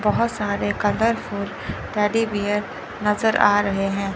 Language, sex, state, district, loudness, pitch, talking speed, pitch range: Hindi, female, Chandigarh, Chandigarh, -22 LUFS, 205 Hz, 130 wpm, 200-215 Hz